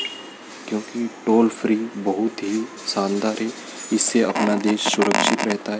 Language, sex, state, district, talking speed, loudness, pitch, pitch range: Hindi, male, Madhya Pradesh, Dhar, 135 wpm, -21 LUFS, 110 Hz, 105-115 Hz